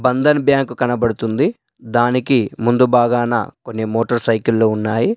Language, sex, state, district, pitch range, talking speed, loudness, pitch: Telugu, male, Telangana, Adilabad, 115-125 Hz, 115 wpm, -17 LUFS, 120 Hz